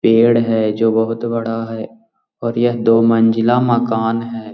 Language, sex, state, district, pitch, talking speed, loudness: Magahi, male, Bihar, Jahanabad, 115 Hz, 160 wpm, -16 LUFS